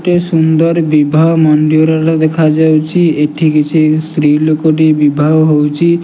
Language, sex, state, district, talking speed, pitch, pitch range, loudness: Odia, male, Odisha, Nuapada, 120 wpm, 155 Hz, 155-160 Hz, -10 LUFS